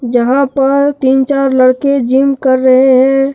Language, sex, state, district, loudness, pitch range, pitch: Hindi, male, Jharkhand, Deoghar, -10 LUFS, 260-275 Hz, 270 Hz